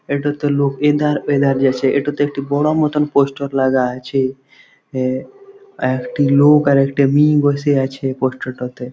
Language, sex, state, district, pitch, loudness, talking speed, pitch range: Bengali, male, West Bengal, Malda, 140 Hz, -16 LUFS, 135 wpm, 130-145 Hz